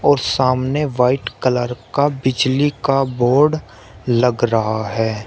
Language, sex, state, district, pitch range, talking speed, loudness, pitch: Hindi, male, Uttar Pradesh, Shamli, 115-135 Hz, 125 wpm, -17 LUFS, 125 Hz